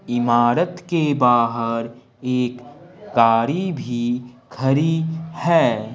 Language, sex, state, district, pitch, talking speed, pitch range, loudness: Hindi, male, Bihar, Patna, 125 Hz, 80 wpm, 120-160 Hz, -20 LUFS